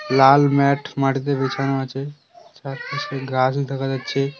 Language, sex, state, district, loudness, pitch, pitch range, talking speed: Bengali, male, West Bengal, Cooch Behar, -20 LUFS, 135 Hz, 135-140 Hz, 125 wpm